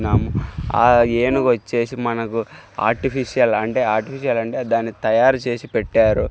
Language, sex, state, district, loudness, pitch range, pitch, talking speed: Telugu, male, Andhra Pradesh, Sri Satya Sai, -19 LUFS, 110-125 Hz, 115 Hz, 115 wpm